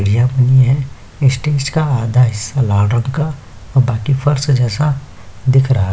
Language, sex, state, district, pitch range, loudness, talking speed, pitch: Hindi, male, Chhattisgarh, Korba, 115-140 Hz, -15 LUFS, 160 wpm, 130 Hz